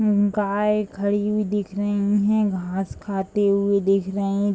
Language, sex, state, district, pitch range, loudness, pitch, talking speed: Hindi, female, Bihar, Bhagalpur, 195-205 Hz, -22 LUFS, 205 Hz, 170 wpm